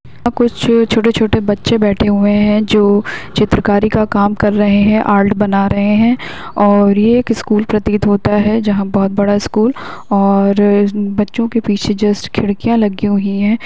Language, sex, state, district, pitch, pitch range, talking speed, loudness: Bhojpuri, female, Bihar, Saran, 210 Hz, 205-220 Hz, 170 wpm, -13 LUFS